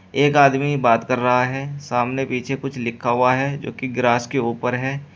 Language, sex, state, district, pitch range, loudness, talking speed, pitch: Hindi, male, Uttar Pradesh, Shamli, 125-135 Hz, -20 LUFS, 210 wpm, 125 Hz